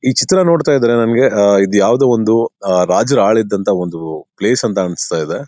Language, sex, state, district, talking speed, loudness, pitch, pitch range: Kannada, male, Karnataka, Bellary, 185 wpm, -13 LUFS, 105 Hz, 95-120 Hz